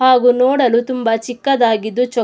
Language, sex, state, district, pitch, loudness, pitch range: Kannada, female, Karnataka, Mysore, 245 Hz, -15 LUFS, 230-255 Hz